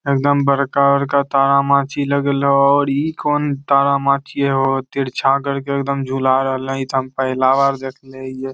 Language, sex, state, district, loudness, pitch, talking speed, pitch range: Magahi, male, Bihar, Lakhisarai, -17 LUFS, 140 Hz, 175 wpm, 135-140 Hz